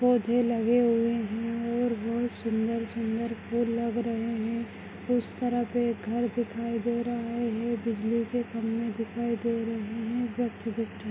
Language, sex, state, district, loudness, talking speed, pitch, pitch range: Hindi, male, Maharashtra, Nagpur, -29 LUFS, 160 wpm, 230 Hz, 225-235 Hz